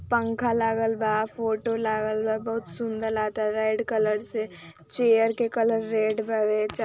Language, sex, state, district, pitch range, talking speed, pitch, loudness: Hindi, female, Uttar Pradesh, Ghazipur, 215-225 Hz, 150 wpm, 220 Hz, -26 LUFS